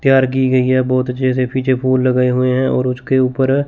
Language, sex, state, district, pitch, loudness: Hindi, male, Chandigarh, Chandigarh, 130 Hz, -15 LUFS